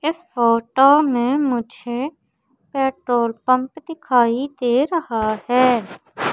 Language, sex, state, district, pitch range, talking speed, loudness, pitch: Hindi, female, Madhya Pradesh, Umaria, 240-285 Hz, 95 wpm, -19 LUFS, 255 Hz